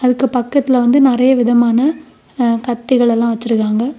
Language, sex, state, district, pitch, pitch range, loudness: Tamil, female, Tamil Nadu, Kanyakumari, 245 Hz, 235-265 Hz, -14 LUFS